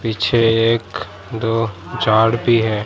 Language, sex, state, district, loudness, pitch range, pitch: Hindi, male, Gujarat, Gandhinagar, -17 LUFS, 110-115 Hz, 115 Hz